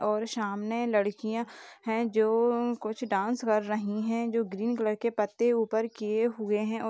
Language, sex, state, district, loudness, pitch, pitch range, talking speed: Hindi, female, Uttar Pradesh, Jalaun, -29 LUFS, 220 Hz, 215-230 Hz, 185 wpm